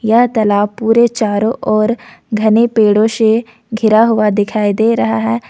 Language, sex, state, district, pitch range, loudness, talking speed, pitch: Hindi, female, Jharkhand, Ranchi, 210-230 Hz, -13 LUFS, 150 wpm, 220 Hz